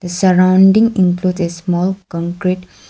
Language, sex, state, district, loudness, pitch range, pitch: English, female, Arunachal Pradesh, Lower Dibang Valley, -14 LUFS, 175-185 Hz, 185 Hz